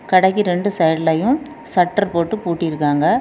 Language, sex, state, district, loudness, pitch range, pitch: Tamil, female, Tamil Nadu, Kanyakumari, -18 LUFS, 165-205 Hz, 180 Hz